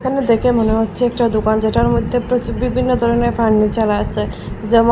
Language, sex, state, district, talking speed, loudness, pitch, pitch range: Bengali, female, Assam, Hailakandi, 170 wpm, -16 LUFS, 235 Hz, 220-245 Hz